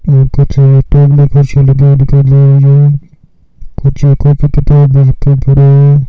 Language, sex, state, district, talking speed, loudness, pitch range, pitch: Hindi, male, Rajasthan, Bikaner, 100 wpm, -7 LUFS, 135-145 Hz, 140 Hz